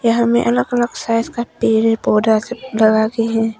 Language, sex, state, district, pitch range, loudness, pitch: Hindi, female, Arunachal Pradesh, Longding, 220-240 Hz, -16 LUFS, 230 Hz